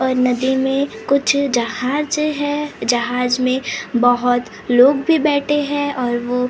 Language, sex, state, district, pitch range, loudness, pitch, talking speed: Hindi, male, Maharashtra, Gondia, 245-285 Hz, -17 LUFS, 260 Hz, 140 wpm